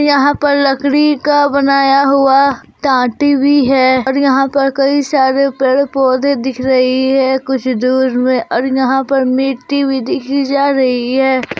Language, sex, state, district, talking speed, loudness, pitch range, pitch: Hindi, female, Jharkhand, Garhwa, 160 wpm, -12 LUFS, 260-280 Hz, 270 Hz